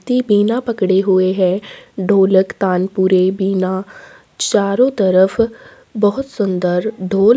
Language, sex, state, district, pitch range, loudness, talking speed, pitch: Hindi, female, Chhattisgarh, Sukma, 190-225 Hz, -15 LUFS, 105 wpm, 195 Hz